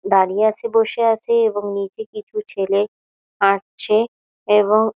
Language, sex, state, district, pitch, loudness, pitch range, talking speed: Bengali, female, West Bengal, Malda, 215 Hz, -19 LUFS, 200-230 Hz, 135 wpm